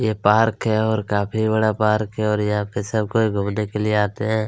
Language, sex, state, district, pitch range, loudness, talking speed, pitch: Hindi, male, Chhattisgarh, Kabirdham, 105-110 Hz, -20 LUFS, 240 wpm, 105 Hz